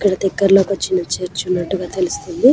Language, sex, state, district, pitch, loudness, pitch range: Telugu, female, Telangana, Nalgonda, 195 Hz, -18 LUFS, 185-210 Hz